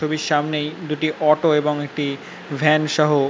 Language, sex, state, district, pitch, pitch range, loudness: Bengali, male, West Bengal, North 24 Parganas, 150 Hz, 150-155 Hz, -20 LUFS